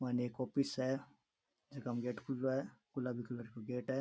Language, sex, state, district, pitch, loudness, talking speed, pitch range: Rajasthani, male, Rajasthan, Churu, 130 Hz, -41 LUFS, 210 wpm, 125-135 Hz